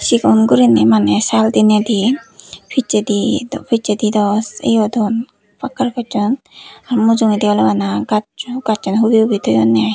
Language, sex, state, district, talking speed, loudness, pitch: Chakma, female, Tripura, West Tripura, 125 wpm, -14 LUFS, 210 Hz